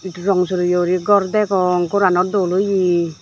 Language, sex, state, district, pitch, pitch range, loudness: Chakma, female, Tripura, Dhalai, 185 Hz, 180-195 Hz, -17 LUFS